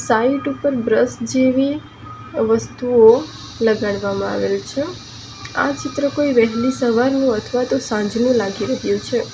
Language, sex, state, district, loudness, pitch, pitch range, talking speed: Gujarati, female, Gujarat, Valsad, -18 LUFS, 240 Hz, 220-265 Hz, 120 wpm